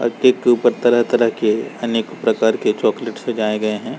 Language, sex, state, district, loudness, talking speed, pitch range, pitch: Hindi, male, Chhattisgarh, Sarguja, -18 LUFS, 195 wpm, 110-120 Hz, 120 Hz